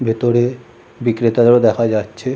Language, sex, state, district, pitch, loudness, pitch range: Bengali, male, West Bengal, Kolkata, 120 Hz, -15 LUFS, 115-120 Hz